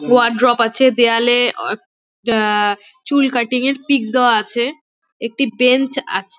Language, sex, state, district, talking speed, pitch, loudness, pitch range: Bengali, female, West Bengal, Dakshin Dinajpur, 120 wpm, 245 Hz, -15 LUFS, 230-265 Hz